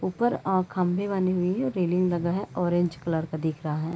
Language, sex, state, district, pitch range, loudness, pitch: Hindi, female, Chhattisgarh, Raigarh, 160-185 Hz, -26 LUFS, 175 Hz